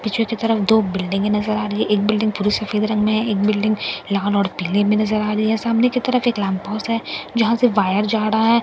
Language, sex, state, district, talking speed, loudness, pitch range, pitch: Hindi, female, Bihar, Katihar, 280 wpm, -19 LUFS, 205-225 Hz, 215 Hz